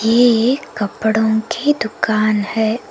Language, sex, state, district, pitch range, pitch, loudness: Hindi, female, Karnataka, Koppal, 215-235 Hz, 220 Hz, -16 LUFS